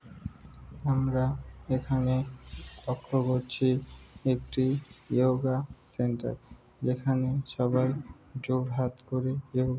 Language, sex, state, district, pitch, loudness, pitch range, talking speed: Bengali, male, West Bengal, Malda, 130 Hz, -30 LUFS, 125-130 Hz, 85 wpm